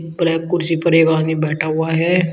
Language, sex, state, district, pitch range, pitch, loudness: Hindi, male, Uttar Pradesh, Shamli, 160-170 Hz, 165 Hz, -17 LUFS